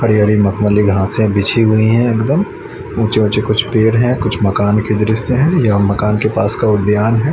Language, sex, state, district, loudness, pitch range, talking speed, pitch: Hindi, male, Chandigarh, Chandigarh, -13 LUFS, 105-115 Hz, 190 wpm, 110 Hz